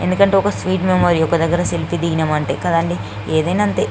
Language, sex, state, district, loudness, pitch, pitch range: Telugu, female, Andhra Pradesh, Guntur, -17 LUFS, 170 Hz, 160-185 Hz